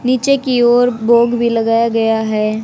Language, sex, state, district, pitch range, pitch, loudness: Hindi, male, Haryana, Charkhi Dadri, 225-245 Hz, 235 Hz, -13 LUFS